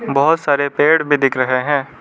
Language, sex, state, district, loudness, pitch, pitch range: Hindi, male, Arunachal Pradesh, Lower Dibang Valley, -15 LUFS, 140 Hz, 135-150 Hz